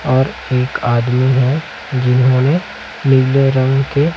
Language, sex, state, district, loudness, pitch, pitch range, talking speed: Hindi, male, Chhattisgarh, Raipur, -14 LUFS, 130 Hz, 130-135 Hz, 115 wpm